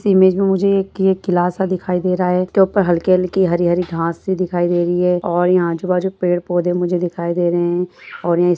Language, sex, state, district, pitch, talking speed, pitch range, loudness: Hindi, female, Bihar, Jahanabad, 180 Hz, 240 wpm, 175-190 Hz, -17 LUFS